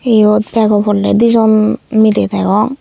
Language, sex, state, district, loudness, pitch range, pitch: Chakma, female, Tripura, Unakoti, -11 LUFS, 210-225 Hz, 215 Hz